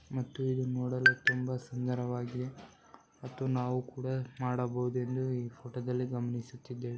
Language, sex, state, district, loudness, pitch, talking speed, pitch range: Kannada, male, Karnataka, Bellary, -34 LUFS, 125 Hz, 105 wpm, 125-130 Hz